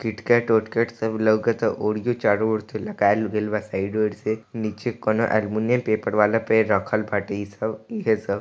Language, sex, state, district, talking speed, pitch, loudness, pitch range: Bhojpuri, male, Bihar, East Champaran, 185 wpm, 110 Hz, -23 LUFS, 105-110 Hz